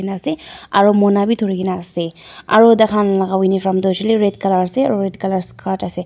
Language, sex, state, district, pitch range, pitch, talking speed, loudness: Nagamese, female, Nagaland, Dimapur, 190-215 Hz, 195 Hz, 200 wpm, -16 LUFS